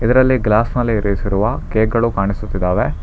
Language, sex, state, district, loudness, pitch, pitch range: Kannada, male, Karnataka, Bangalore, -17 LUFS, 105 Hz, 100-115 Hz